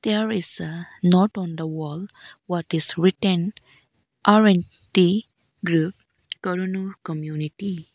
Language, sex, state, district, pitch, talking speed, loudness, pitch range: English, female, Arunachal Pradesh, Lower Dibang Valley, 180 Hz, 120 wpm, -22 LUFS, 165-195 Hz